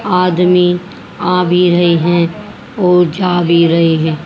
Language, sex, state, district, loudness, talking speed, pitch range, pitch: Hindi, female, Haryana, Jhajjar, -12 LUFS, 140 wpm, 170-180 Hz, 175 Hz